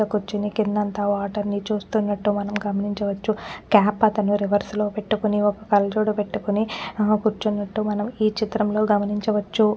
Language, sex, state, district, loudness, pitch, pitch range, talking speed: Telugu, female, Telangana, Nalgonda, -23 LUFS, 210 Hz, 205-215 Hz, 135 wpm